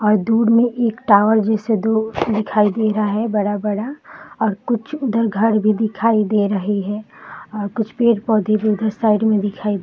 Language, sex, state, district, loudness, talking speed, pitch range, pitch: Hindi, female, Bihar, Saharsa, -18 LUFS, 195 wpm, 210-225 Hz, 215 Hz